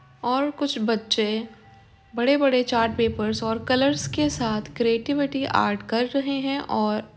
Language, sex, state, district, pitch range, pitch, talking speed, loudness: Hindi, female, Uttar Pradesh, Jyotiba Phule Nagar, 220-275 Hz, 230 Hz, 140 wpm, -23 LUFS